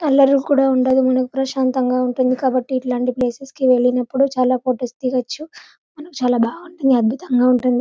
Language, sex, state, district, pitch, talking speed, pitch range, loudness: Telugu, female, Telangana, Karimnagar, 255 Hz, 140 wpm, 250-270 Hz, -18 LUFS